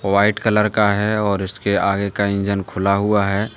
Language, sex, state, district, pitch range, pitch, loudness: Hindi, male, Jharkhand, Deoghar, 100-105 Hz, 100 Hz, -18 LUFS